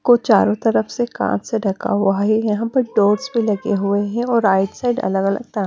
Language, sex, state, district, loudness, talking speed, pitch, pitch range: Hindi, female, Punjab, Kapurthala, -18 LUFS, 245 wpm, 215 Hz, 200-235 Hz